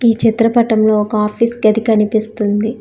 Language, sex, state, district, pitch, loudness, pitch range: Telugu, female, Telangana, Hyderabad, 220 Hz, -14 LUFS, 215-230 Hz